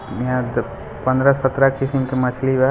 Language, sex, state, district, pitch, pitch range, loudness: Hindi, male, Bihar, Gopalganj, 130 Hz, 125-135 Hz, -19 LUFS